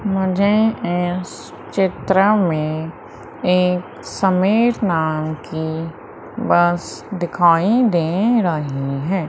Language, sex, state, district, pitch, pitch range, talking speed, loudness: Hindi, female, Madhya Pradesh, Umaria, 180 Hz, 165-195 Hz, 85 wpm, -18 LUFS